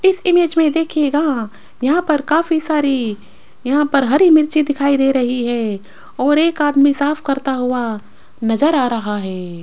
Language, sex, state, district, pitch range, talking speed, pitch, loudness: Hindi, female, Rajasthan, Jaipur, 240-305 Hz, 160 wpm, 280 Hz, -16 LUFS